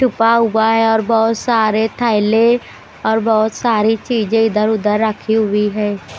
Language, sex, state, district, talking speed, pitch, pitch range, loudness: Hindi, female, Haryana, Rohtak, 155 wpm, 220 Hz, 215-225 Hz, -15 LUFS